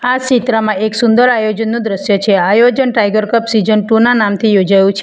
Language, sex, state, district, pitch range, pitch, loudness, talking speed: Gujarati, female, Gujarat, Valsad, 210-235 Hz, 220 Hz, -12 LUFS, 190 wpm